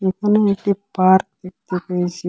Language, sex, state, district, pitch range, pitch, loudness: Bengali, male, Assam, Hailakandi, 180-200 Hz, 190 Hz, -18 LUFS